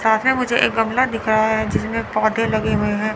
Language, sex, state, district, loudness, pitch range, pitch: Hindi, female, Chandigarh, Chandigarh, -18 LUFS, 220-230 Hz, 220 Hz